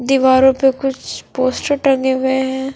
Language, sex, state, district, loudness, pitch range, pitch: Hindi, female, Punjab, Fazilka, -15 LUFS, 260-270 Hz, 265 Hz